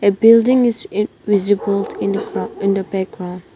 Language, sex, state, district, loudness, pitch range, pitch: English, female, Nagaland, Dimapur, -17 LUFS, 195-210 Hz, 200 Hz